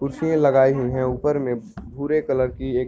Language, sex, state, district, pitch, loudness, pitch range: Hindi, male, Bihar, Sitamarhi, 135 Hz, -21 LUFS, 125-145 Hz